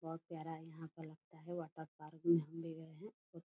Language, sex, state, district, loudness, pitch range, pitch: Hindi, female, Bihar, Purnia, -44 LUFS, 160-165 Hz, 165 Hz